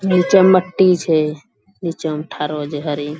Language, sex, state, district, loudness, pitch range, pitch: Angika, female, Bihar, Bhagalpur, -16 LUFS, 150-185 Hz, 160 Hz